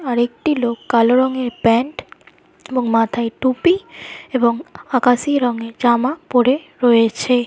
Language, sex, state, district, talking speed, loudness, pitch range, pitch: Bengali, female, West Bengal, Jhargram, 110 wpm, -17 LUFS, 235-260 Hz, 245 Hz